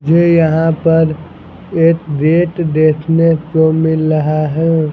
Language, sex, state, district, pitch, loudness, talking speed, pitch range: Hindi, male, Bihar, Patna, 160 Hz, -13 LUFS, 120 wpm, 155-165 Hz